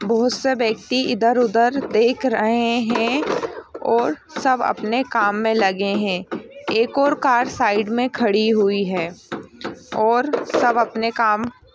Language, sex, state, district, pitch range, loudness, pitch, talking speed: Hindi, female, Bihar, Saran, 215-250 Hz, -19 LUFS, 230 Hz, 140 wpm